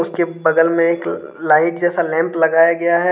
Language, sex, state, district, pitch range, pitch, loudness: Hindi, male, Jharkhand, Deoghar, 165-170 Hz, 170 Hz, -16 LUFS